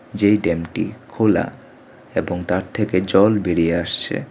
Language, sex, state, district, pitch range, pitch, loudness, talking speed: Bengali, male, Tripura, West Tripura, 85-100 Hz, 90 Hz, -20 LUFS, 140 wpm